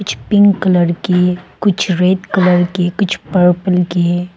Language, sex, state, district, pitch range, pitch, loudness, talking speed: Hindi, female, Arunachal Pradesh, Longding, 175-190 Hz, 180 Hz, -13 LUFS, 150 wpm